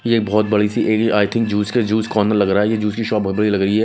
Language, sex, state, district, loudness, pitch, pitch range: Hindi, male, Odisha, Nuapada, -17 LUFS, 105 Hz, 105-110 Hz